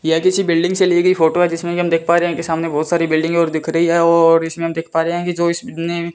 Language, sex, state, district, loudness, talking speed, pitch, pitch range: Hindi, female, Rajasthan, Bikaner, -16 LUFS, 330 wpm, 170 Hz, 165-175 Hz